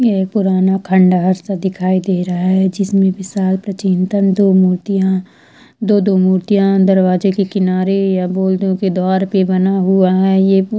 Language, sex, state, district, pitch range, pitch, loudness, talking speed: Hindi, female, Chhattisgarh, Bilaspur, 185-195 Hz, 190 Hz, -14 LUFS, 155 wpm